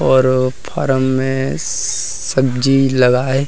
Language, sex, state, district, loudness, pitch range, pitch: Chhattisgarhi, male, Chhattisgarh, Rajnandgaon, -16 LUFS, 130-135 Hz, 130 Hz